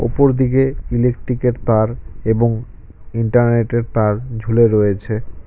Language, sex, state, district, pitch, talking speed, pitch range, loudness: Bengali, male, West Bengal, Cooch Behar, 115 Hz, 100 wpm, 105-120 Hz, -17 LUFS